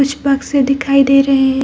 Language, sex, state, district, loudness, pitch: Hindi, female, Bihar, Jamui, -13 LUFS, 275 Hz